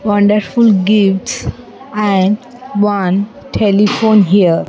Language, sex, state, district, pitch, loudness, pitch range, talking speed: English, female, Andhra Pradesh, Sri Satya Sai, 205 Hz, -13 LUFS, 200-215 Hz, 75 wpm